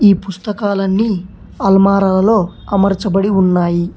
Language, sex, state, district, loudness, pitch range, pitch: Telugu, male, Telangana, Hyderabad, -14 LUFS, 190-205 Hz, 195 Hz